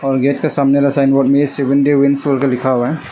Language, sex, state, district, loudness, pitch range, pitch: Hindi, male, Arunachal Pradesh, Lower Dibang Valley, -14 LUFS, 135-140 Hz, 140 Hz